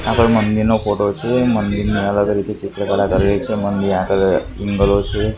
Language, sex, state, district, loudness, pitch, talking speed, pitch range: Gujarati, male, Gujarat, Gandhinagar, -17 LUFS, 100 Hz, 65 wpm, 100-110 Hz